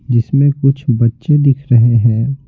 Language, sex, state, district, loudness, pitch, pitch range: Hindi, male, Bihar, Patna, -12 LUFS, 135 Hz, 115-140 Hz